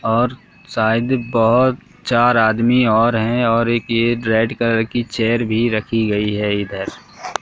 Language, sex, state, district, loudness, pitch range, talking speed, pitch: Hindi, male, Madhya Pradesh, Katni, -17 LUFS, 110-120 Hz, 155 wpm, 115 Hz